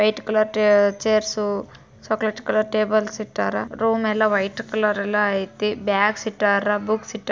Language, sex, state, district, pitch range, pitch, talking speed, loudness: Kannada, female, Karnataka, Bijapur, 205-215 Hz, 215 Hz, 155 wpm, -21 LUFS